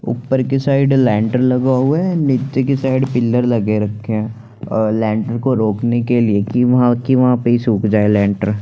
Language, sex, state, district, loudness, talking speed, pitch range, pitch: Hindi, male, Chandigarh, Chandigarh, -15 LUFS, 195 wpm, 110-130 Hz, 120 Hz